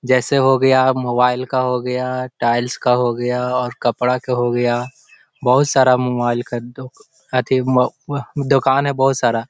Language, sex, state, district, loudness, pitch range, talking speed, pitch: Hindi, male, Bihar, Jahanabad, -17 LUFS, 125-130 Hz, 185 wpm, 125 Hz